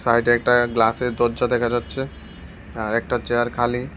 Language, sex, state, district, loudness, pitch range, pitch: Bengali, male, Tripura, West Tripura, -20 LUFS, 120-125 Hz, 120 Hz